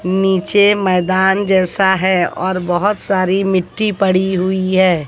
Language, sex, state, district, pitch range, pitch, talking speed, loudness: Hindi, female, Haryana, Jhajjar, 185-195 Hz, 190 Hz, 130 wpm, -15 LUFS